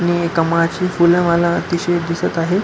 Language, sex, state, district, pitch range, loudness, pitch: Marathi, male, Maharashtra, Pune, 170-175 Hz, -16 LUFS, 170 Hz